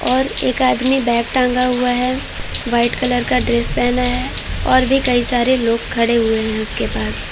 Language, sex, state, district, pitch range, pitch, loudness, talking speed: Hindi, female, Uttar Pradesh, Varanasi, 230-255 Hz, 245 Hz, -17 LUFS, 195 wpm